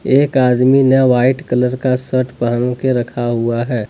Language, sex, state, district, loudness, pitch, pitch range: Hindi, male, Jharkhand, Deoghar, -15 LUFS, 125 Hz, 120-130 Hz